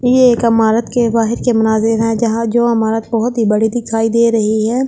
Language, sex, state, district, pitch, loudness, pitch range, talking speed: Hindi, female, Delhi, New Delhi, 230 Hz, -14 LUFS, 225-235 Hz, 220 wpm